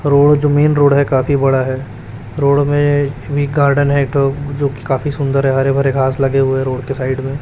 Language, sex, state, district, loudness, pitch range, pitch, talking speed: Hindi, male, Chhattisgarh, Raipur, -14 LUFS, 135-145 Hz, 140 Hz, 210 wpm